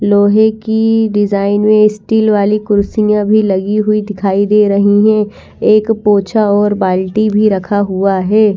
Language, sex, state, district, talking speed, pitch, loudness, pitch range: Hindi, female, Chandigarh, Chandigarh, 160 wpm, 210 Hz, -12 LUFS, 200-215 Hz